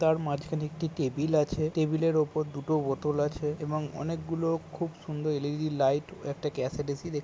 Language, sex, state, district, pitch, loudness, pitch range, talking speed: Bengali, male, West Bengal, Kolkata, 155 Hz, -30 LUFS, 145-160 Hz, 190 wpm